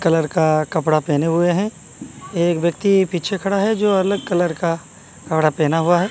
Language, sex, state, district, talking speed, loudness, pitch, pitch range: Hindi, male, Odisha, Malkangiri, 185 wpm, -18 LUFS, 170 Hz, 160-195 Hz